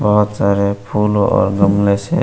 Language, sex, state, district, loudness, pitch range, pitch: Hindi, female, Bihar, West Champaran, -15 LUFS, 100-105 Hz, 100 Hz